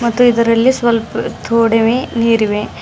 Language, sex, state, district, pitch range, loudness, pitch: Kannada, female, Karnataka, Bidar, 225-240 Hz, -14 LUFS, 230 Hz